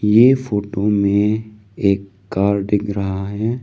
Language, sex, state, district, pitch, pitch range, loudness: Hindi, male, Arunachal Pradesh, Lower Dibang Valley, 100 Hz, 100-105 Hz, -18 LUFS